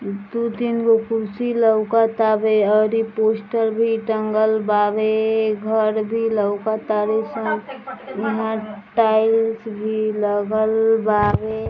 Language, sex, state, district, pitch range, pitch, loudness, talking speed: Bhojpuri, female, Bihar, East Champaran, 215-225 Hz, 220 Hz, -19 LUFS, 135 wpm